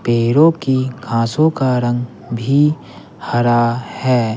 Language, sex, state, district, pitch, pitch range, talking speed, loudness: Hindi, male, Bihar, Patna, 125 Hz, 120-135 Hz, 110 wpm, -16 LUFS